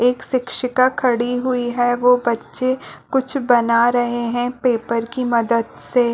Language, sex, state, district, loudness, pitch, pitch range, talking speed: Hindi, female, Chhattisgarh, Balrampur, -19 LUFS, 245 Hz, 235-255 Hz, 145 wpm